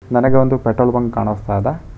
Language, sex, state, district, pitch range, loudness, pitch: Kannada, male, Karnataka, Bangalore, 110-130 Hz, -16 LUFS, 120 Hz